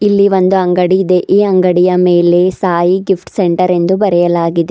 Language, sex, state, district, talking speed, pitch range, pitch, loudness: Kannada, female, Karnataka, Bidar, 155 wpm, 175-190 Hz, 180 Hz, -11 LUFS